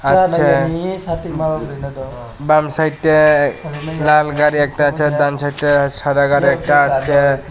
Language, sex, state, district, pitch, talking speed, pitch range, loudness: Bengali, male, Tripura, West Tripura, 145 Hz, 105 wpm, 140-155 Hz, -15 LUFS